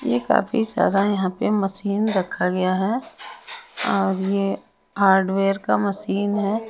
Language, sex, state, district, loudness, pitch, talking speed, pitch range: Hindi, female, Punjab, Kapurthala, -21 LUFS, 200 Hz, 135 wpm, 195-215 Hz